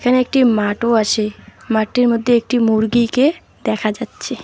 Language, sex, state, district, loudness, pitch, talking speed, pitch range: Bengali, female, West Bengal, Alipurduar, -16 LUFS, 235 Hz, 135 wpm, 220-250 Hz